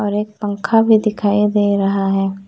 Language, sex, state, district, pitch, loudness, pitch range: Hindi, female, Jharkhand, Deoghar, 205 Hz, -16 LUFS, 195-210 Hz